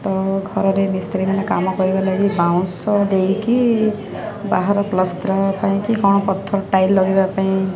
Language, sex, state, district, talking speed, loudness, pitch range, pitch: Odia, female, Odisha, Sambalpur, 125 wpm, -18 LUFS, 190-200 Hz, 195 Hz